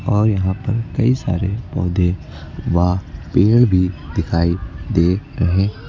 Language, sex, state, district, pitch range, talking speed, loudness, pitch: Hindi, male, Uttar Pradesh, Lucknow, 90-110 Hz, 120 wpm, -18 LUFS, 95 Hz